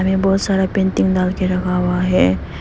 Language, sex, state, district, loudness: Hindi, female, Arunachal Pradesh, Papum Pare, -17 LUFS